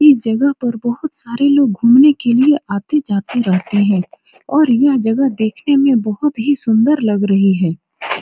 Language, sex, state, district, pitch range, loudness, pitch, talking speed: Hindi, female, Bihar, Supaul, 210-280 Hz, -14 LUFS, 240 Hz, 175 wpm